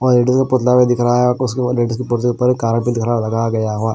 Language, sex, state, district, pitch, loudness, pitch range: Hindi, male, Delhi, New Delhi, 120 Hz, -16 LUFS, 115-125 Hz